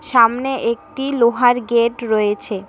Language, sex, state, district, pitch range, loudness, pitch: Bengali, female, West Bengal, Cooch Behar, 225-255 Hz, -17 LUFS, 235 Hz